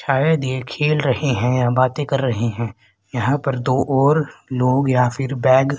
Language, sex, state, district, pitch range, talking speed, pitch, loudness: Hindi, male, Haryana, Rohtak, 125-140 Hz, 195 wpm, 130 Hz, -19 LUFS